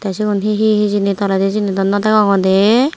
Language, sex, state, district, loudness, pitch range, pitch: Chakma, female, Tripura, Unakoti, -14 LUFS, 195-215 Hz, 205 Hz